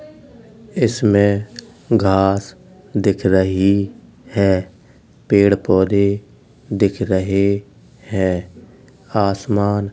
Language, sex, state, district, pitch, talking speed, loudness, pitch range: Hindi, male, Uttar Pradesh, Jalaun, 100 Hz, 70 wpm, -17 LUFS, 95-105 Hz